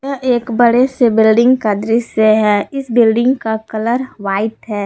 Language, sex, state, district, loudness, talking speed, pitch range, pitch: Hindi, female, Jharkhand, Palamu, -14 LUFS, 175 wpm, 215-245 Hz, 230 Hz